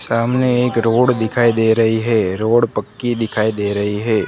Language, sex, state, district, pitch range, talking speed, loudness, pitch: Hindi, male, Gujarat, Gandhinagar, 110-120 Hz, 180 wpm, -16 LUFS, 115 Hz